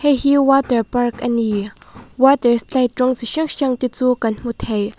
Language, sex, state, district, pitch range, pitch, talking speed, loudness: Mizo, female, Mizoram, Aizawl, 235-270 Hz, 250 Hz, 190 wpm, -17 LUFS